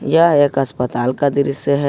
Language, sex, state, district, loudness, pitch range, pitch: Hindi, male, Jharkhand, Ranchi, -16 LUFS, 135-145 Hz, 140 Hz